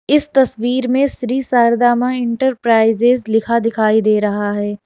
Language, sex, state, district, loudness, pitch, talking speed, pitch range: Hindi, female, Uttar Pradesh, Lalitpur, -15 LUFS, 235 Hz, 150 wpm, 220-255 Hz